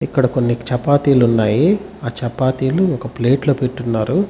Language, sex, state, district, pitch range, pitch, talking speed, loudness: Telugu, male, Andhra Pradesh, Chittoor, 120-145 Hz, 130 Hz, 125 wpm, -17 LUFS